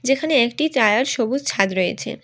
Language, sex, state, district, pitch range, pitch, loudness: Bengali, female, West Bengal, Alipurduar, 230-285 Hz, 265 Hz, -19 LUFS